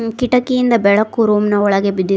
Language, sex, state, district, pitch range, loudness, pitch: Kannada, female, Karnataka, Koppal, 200-245 Hz, -14 LUFS, 215 Hz